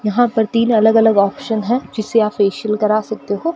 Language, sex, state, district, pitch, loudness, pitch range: Hindi, female, Rajasthan, Bikaner, 220 Hz, -16 LUFS, 210-230 Hz